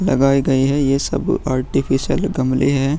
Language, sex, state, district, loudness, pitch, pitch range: Hindi, female, Bihar, Vaishali, -17 LUFS, 135 Hz, 130-140 Hz